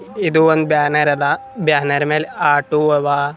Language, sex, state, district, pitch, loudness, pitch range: Kannada, male, Karnataka, Bidar, 150 Hz, -16 LUFS, 145-155 Hz